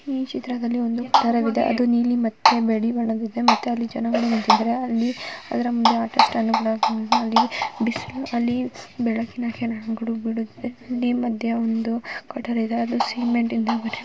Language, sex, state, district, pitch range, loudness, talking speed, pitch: Kannada, female, Karnataka, Mysore, 225-245 Hz, -22 LUFS, 130 wpm, 235 Hz